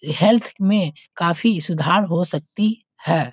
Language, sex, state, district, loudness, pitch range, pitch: Hindi, male, Bihar, Muzaffarpur, -20 LUFS, 165-210 Hz, 180 Hz